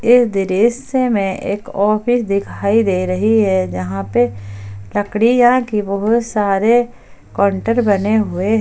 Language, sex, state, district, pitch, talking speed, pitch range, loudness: Hindi, male, Jharkhand, Ranchi, 205 Hz, 130 wpm, 190-230 Hz, -16 LUFS